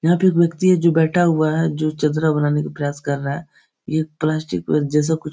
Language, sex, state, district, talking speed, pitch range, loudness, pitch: Hindi, male, Bihar, Supaul, 270 wpm, 150-165 Hz, -19 LUFS, 155 Hz